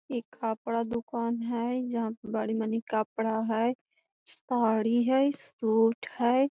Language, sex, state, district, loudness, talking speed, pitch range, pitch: Magahi, female, Bihar, Gaya, -29 LUFS, 130 wpm, 225-245 Hz, 230 Hz